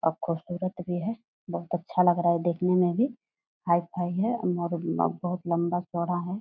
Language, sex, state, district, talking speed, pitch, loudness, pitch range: Hindi, female, Bihar, Purnia, 170 wpm, 175 Hz, -28 LUFS, 170-185 Hz